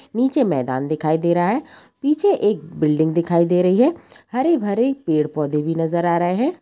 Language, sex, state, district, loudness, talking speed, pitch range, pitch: Hindi, female, Bihar, Purnia, -19 LUFS, 180 wpm, 160-260 Hz, 175 Hz